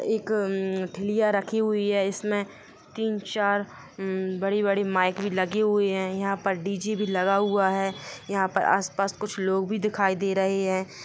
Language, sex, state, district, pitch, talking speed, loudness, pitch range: Hindi, female, Jharkhand, Jamtara, 195 Hz, 175 wpm, -26 LUFS, 190-205 Hz